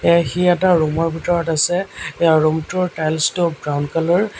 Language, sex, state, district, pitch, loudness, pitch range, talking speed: Assamese, male, Assam, Sonitpur, 165 Hz, -18 LUFS, 155-175 Hz, 205 wpm